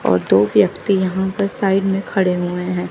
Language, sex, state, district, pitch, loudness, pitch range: Hindi, female, Chandigarh, Chandigarh, 185 Hz, -17 LUFS, 180-195 Hz